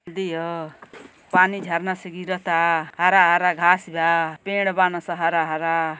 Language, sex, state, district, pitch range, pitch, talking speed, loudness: Hindi, female, Uttar Pradesh, Gorakhpur, 165-185 Hz, 170 Hz, 150 wpm, -21 LUFS